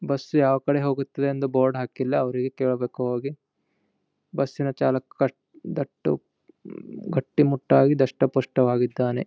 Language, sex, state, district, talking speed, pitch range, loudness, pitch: Kannada, male, Karnataka, Gulbarga, 125 wpm, 130-140 Hz, -24 LUFS, 135 Hz